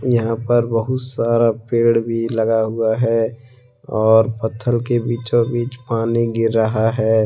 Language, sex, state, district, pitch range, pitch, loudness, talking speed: Hindi, male, Jharkhand, Deoghar, 115-120 Hz, 115 Hz, -18 LUFS, 155 wpm